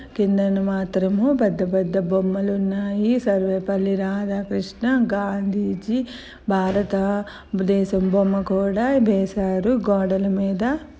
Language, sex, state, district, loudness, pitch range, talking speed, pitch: Telugu, female, Telangana, Nalgonda, -21 LUFS, 195-205 Hz, 85 wpm, 195 Hz